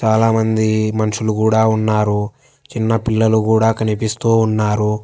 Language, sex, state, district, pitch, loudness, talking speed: Telugu, male, Telangana, Hyderabad, 110 Hz, -16 LUFS, 105 wpm